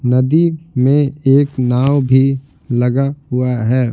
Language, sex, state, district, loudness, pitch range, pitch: Hindi, male, Bihar, Patna, -14 LUFS, 125-140 Hz, 135 Hz